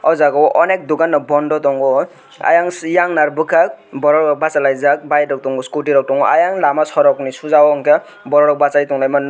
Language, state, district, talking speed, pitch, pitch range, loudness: Kokborok, Tripura, West Tripura, 215 wpm, 150 Hz, 140-160 Hz, -14 LUFS